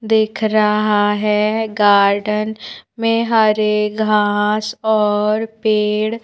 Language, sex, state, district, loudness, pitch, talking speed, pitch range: Hindi, female, Madhya Pradesh, Bhopal, -16 LUFS, 215 Hz, 85 wpm, 210-220 Hz